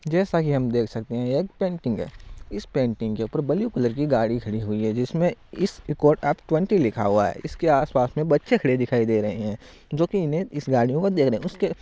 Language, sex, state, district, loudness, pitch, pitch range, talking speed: Marwari, male, Rajasthan, Nagaur, -23 LUFS, 140 Hz, 115-170 Hz, 220 wpm